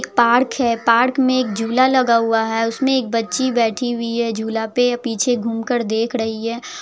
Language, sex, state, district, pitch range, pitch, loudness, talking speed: Hindi, male, Bihar, Araria, 225-250 Hz, 235 Hz, -18 LUFS, 200 wpm